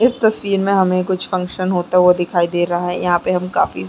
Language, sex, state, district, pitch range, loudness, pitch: Hindi, female, Chhattisgarh, Sarguja, 175-190 Hz, -17 LUFS, 180 Hz